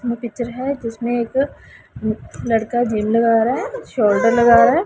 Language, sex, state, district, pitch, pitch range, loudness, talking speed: Hindi, female, Punjab, Pathankot, 235 Hz, 230-250 Hz, -18 LUFS, 175 wpm